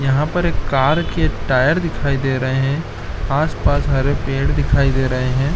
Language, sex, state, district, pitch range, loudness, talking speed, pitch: Hindi, male, Chhattisgarh, Korba, 130-145 Hz, -18 LUFS, 185 wpm, 135 Hz